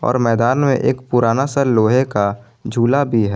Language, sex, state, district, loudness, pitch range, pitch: Hindi, male, Jharkhand, Garhwa, -16 LUFS, 115-135 Hz, 120 Hz